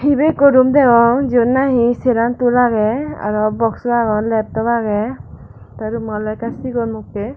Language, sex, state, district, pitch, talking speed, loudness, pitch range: Chakma, female, Tripura, Dhalai, 235 Hz, 165 wpm, -15 LUFS, 220-255 Hz